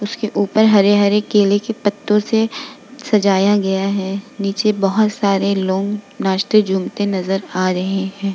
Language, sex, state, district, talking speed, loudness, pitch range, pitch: Hindi, female, Bihar, Vaishali, 145 wpm, -17 LUFS, 195-215 Hz, 200 Hz